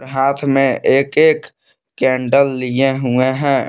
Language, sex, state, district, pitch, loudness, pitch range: Hindi, male, Jharkhand, Palamu, 135 Hz, -15 LUFS, 130-140 Hz